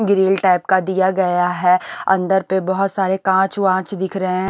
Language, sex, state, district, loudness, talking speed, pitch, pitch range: Hindi, female, Maharashtra, Washim, -17 LUFS, 200 wpm, 190 Hz, 185-190 Hz